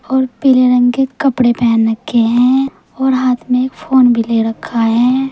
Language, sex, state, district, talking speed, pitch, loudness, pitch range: Hindi, female, Uttar Pradesh, Saharanpur, 190 wpm, 250 Hz, -13 LUFS, 235-265 Hz